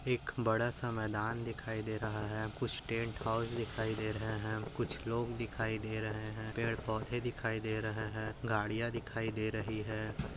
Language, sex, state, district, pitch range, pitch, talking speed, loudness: Hindi, male, Chhattisgarh, Bastar, 110-115 Hz, 110 Hz, 185 wpm, -36 LUFS